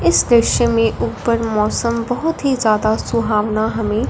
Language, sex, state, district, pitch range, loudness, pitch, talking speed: Hindi, female, Punjab, Fazilka, 210-235 Hz, -17 LUFS, 220 Hz, 145 wpm